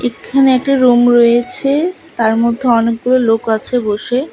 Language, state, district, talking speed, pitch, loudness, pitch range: Bengali, West Bengal, Alipurduar, 140 wpm, 245 Hz, -13 LUFS, 230-260 Hz